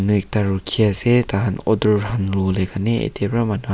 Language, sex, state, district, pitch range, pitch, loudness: Nagamese, male, Nagaland, Kohima, 95-110 Hz, 105 Hz, -18 LUFS